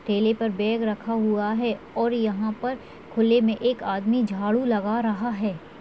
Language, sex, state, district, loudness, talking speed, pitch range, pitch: Hindi, female, Chhattisgarh, Raigarh, -24 LUFS, 185 wpm, 210-230 Hz, 220 Hz